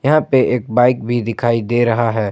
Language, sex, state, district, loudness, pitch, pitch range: Hindi, male, Jharkhand, Garhwa, -16 LUFS, 120 Hz, 115-125 Hz